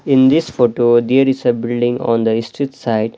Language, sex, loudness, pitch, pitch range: English, male, -15 LUFS, 120 Hz, 115-130 Hz